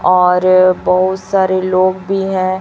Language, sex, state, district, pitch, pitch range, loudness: Hindi, female, Chhattisgarh, Raipur, 185 Hz, 185-190 Hz, -13 LUFS